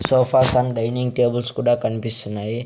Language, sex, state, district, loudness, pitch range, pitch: Telugu, male, Andhra Pradesh, Sri Satya Sai, -20 LUFS, 115-125 Hz, 120 Hz